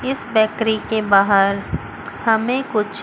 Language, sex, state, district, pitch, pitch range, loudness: Hindi, female, Chandigarh, Chandigarh, 220 Hz, 205-230 Hz, -18 LUFS